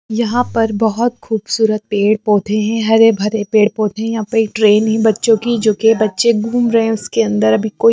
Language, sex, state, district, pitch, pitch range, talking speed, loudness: Hindi, female, Punjab, Pathankot, 220 Hz, 215-225 Hz, 190 wpm, -14 LUFS